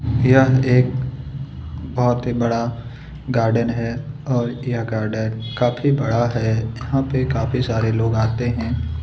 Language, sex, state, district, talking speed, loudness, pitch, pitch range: Hindi, male, Chhattisgarh, Kabirdham, 135 wpm, -20 LUFS, 120 Hz, 115-130 Hz